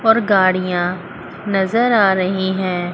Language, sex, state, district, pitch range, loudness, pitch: Hindi, female, Chandigarh, Chandigarh, 185-205 Hz, -16 LUFS, 190 Hz